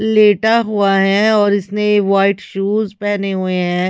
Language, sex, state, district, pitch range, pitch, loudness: Hindi, female, Chhattisgarh, Raipur, 195-210 Hz, 205 Hz, -15 LUFS